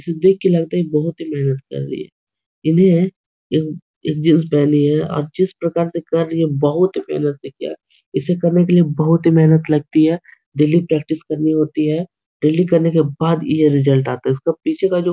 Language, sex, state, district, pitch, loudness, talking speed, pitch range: Hindi, male, Bihar, Supaul, 160 Hz, -17 LUFS, 220 wpm, 150-170 Hz